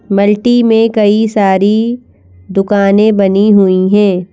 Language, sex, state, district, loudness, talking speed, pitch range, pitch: Hindi, female, Madhya Pradesh, Bhopal, -10 LUFS, 110 wpm, 195-215 Hz, 205 Hz